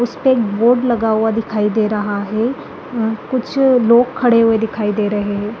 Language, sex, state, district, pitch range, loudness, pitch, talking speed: Hindi, female, Uttarakhand, Uttarkashi, 210-245 Hz, -16 LUFS, 225 Hz, 195 wpm